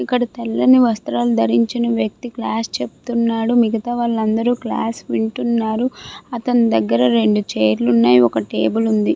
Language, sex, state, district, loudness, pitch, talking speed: Telugu, female, Andhra Pradesh, Visakhapatnam, -17 LUFS, 220 Hz, 125 wpm